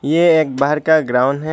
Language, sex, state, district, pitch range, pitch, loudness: Hindi, male, Tripura, Dhalai, 140-160 Hz, 150 Hz, -15 LUFS